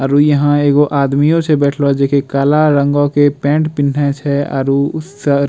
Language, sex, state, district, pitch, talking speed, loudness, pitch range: Angika, male, Bihar, Bhagalpur, 145 Hz, 195 wpm, -13 LUFS, 140-145 Hz